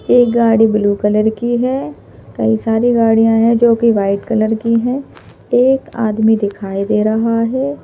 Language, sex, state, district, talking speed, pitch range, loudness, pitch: Hindi, female, Madhya Pradesh, Bhopal, 170 wpm, 210-235 Hz, -14 LUFS, 225 Hz